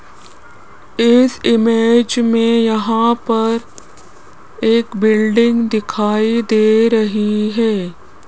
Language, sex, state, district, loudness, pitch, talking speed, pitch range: Hindi, female, Rajasthan, Jaipur, -14 LUFS, 225 Hz, 80 wpm, 215-230 Hz